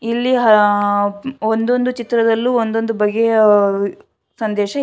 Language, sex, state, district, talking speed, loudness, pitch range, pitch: Kannada, female, Karnataka, Shimoga, 85 wpm, -16 LUFS, 205-240 Hz, 225 Hz